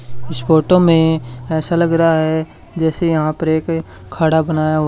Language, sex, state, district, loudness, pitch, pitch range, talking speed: Hindi, male, Haryana, Charkhi Dadri, -16 LUFS, 160 Hz, 155-165 Hz, 145 wpm